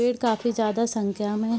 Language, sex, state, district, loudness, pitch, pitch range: Hindi, female, Bihar, Araria, -25 LUFS, 225 Hz, 215-235 Hz